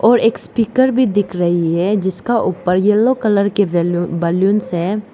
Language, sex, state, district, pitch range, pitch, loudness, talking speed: Hindi, female, Arunachal Pradesh, Lower Dibang Valley, 175-225 Hz, 205 Hz, -16 LUFS, 165 wpm